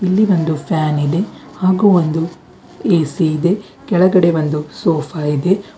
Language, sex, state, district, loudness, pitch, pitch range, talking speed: Kannada, female, Karnataka, Bidar, -16 LUFS, 170 Hz, 155-185 Hz, 125 wpm